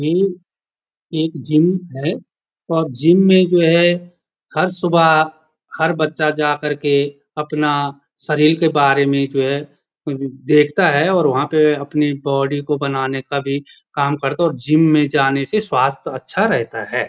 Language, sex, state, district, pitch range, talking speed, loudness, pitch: Hindi, male, Uttarakhand, Uttarkashi, 140-160 Hz, 160 wpm, -17 LUFS, 150 Hz